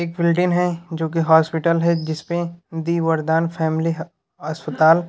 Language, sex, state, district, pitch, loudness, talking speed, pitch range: Hindi, male, Haryana, Charkhi Dadri, 165 Hz, -20 LUFS, 155 wpm, 160-170 Hz